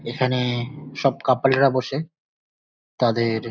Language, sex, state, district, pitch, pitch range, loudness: Bengali, male, West Bengal, North 24 Parganas, 130 Hz, 120-135 Hz, -22 LUFS